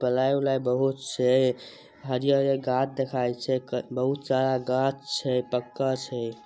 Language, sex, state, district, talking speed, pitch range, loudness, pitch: Maithili, male, Bihar, Samastipur, 140 wpm, 125-135 Hz, -26 LUFS, 130 Hz